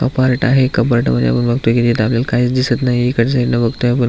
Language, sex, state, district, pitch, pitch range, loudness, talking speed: Marathi, male, Maharashtra, Aurangabad, 120 Hz, 120-125 Hz, -14 LUFS, 250 wpm